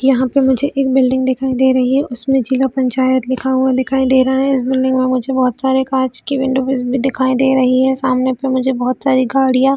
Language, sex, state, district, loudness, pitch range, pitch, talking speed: Hindi, female, Chhattisgarh, Bilaspur, -15 LUFS, 260-265 Hz, 260 Hz, 235 wpm